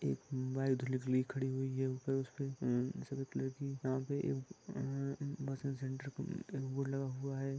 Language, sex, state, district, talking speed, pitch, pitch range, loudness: Hindi, male, Jharkhand, Sahebganj, 110 wpm, 135 Hz, 130-135 Hz, -40 LUFS